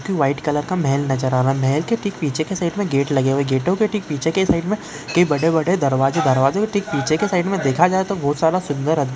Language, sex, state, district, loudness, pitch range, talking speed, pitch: Hindi, male, West Bengal, Dakshin Dinajpur, -19 LUFS, 140-185 Hz, 260 wpm, 155 Hz